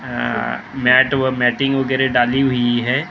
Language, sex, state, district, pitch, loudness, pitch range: Hindi, male, Maharashtra, Gondia, 130 Hz, -17 LUFS, 125-135 Hz